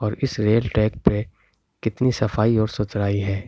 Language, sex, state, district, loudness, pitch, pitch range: Hindi, male, Delhi, New Delhi, -22 LUFS, 105 Hz, 105-110 Hz